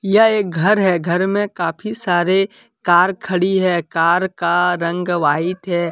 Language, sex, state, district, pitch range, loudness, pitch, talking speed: Hindi, male, Jharkhand, Deoghar, 175-195 Hz, -17 LUFS, 180 Hz, 160 wpm